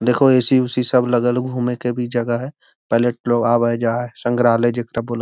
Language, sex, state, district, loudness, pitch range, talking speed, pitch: Magahi, male, Bihar, Gaya, -18 LUFS, 120-125 Hz, 185 wpm, 120 Hz